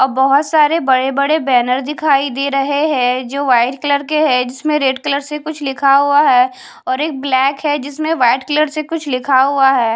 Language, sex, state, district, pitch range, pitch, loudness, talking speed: Hindi, female, Haryana, Charkhi Dadri, 260-300 Hz, 280 Hz, -14 LUFS, 210 wpm